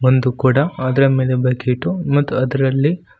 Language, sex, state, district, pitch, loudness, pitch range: Kannada, male, Karnataka, Koppal, 130 Hz, -17 LUFS, 130-145 Hz